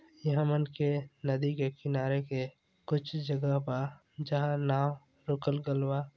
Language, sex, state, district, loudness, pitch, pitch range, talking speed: Chhattisgarhi, male, Chhattisgarh, Balrampur, -33 LUFS, 140 Hz, 135-145 Hz, 145 wpm